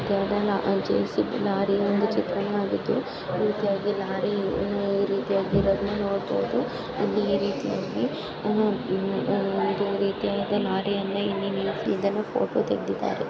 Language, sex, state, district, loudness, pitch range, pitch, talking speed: Kannada, male, Karnataka, Dharwad, -26 LUFS, 195-205 Hz, 200 Hz, 110 wpm